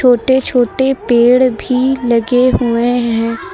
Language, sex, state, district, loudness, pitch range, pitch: Hindi, female, Uttar Pradesh, Lucknow, -13 LUFS, 235-260 Hz, 245 Hz